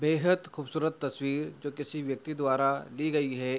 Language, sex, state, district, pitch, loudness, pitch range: Hindi, male, Uttar Pradesh, Hamirpur, 145 Hz, -31 LUFS, 135-155 Hz